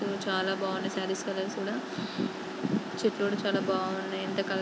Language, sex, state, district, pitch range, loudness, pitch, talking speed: Telugu, female, Andhra Pradesh, Guntur, 190-200 Hz, -31 LUFS, 195 Hz, 170 wpm